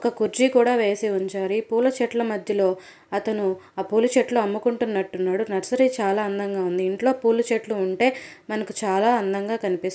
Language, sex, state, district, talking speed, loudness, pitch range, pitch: Telugu, female, Andhra Pradesh, Anantapur, 155 wpm, -23 LUFS, 195-235 Hz, 215 Hz